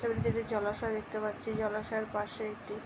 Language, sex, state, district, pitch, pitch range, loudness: Bengali, female, West Bengal, Dakshin Dinajpur, 215 Hz, 210-220 Hz, -35 LUFS